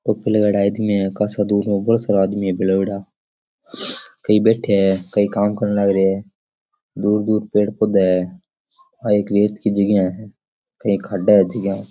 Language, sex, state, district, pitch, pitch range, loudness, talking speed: Rajasthani, male, Rajasthan, Nagaur, 100 Hz, 100-105 Hz, -18 LUFS, 175 wpm